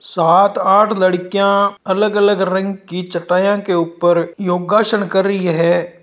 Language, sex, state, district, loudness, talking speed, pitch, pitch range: Marwari, male, Rajasthan, Nagaur, -15 LUFS, 140 wpm, 190 Hz, 175-200 Hz